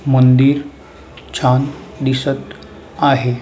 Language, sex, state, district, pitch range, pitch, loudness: Marathi, male, Maharashtra, Mumbai Suburban, 125-140 Hz, 130 Hz, -15 LUFS